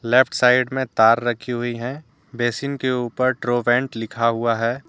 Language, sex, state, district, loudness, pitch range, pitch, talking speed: Hindi, male, Jharkhand, Deoghar, -20 LUFS, 115-130 Hz, 120 Hz, 170 wpm